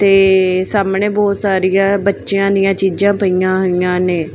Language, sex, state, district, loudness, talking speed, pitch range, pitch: Punjabi, female, Punjab, Fazilka, -14 LUFS, 140 wpm, 185-200 Hz, 195 Hz